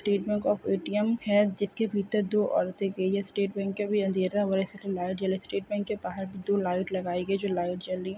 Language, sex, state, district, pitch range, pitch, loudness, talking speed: Hindi, male, Chhattisgarh, Korba, 185-205 Hz, 195 Hz, -29 LUFS, 280 wpm